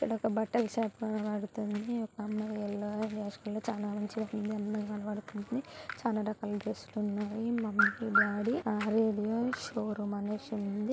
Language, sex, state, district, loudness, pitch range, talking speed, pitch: Telugu, female, Andhra Pradesh, Guntur, -34 LUFS, 210-225 Hz, 135 wpm, 215 Hz